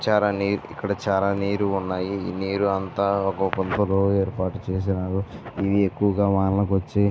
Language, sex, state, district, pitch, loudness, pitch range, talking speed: Telugu, male, Andhra Pradesh, Visakhapatnam, 100 Hz, -23 LUFS, 95-100 Hz, 150 wpm